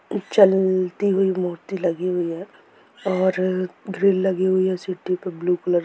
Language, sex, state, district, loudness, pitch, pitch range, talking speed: Hindi, female, Jharkhand, Jamtara, -21 LUFS, 185 Hz, 180-190 Hz, 155 wpm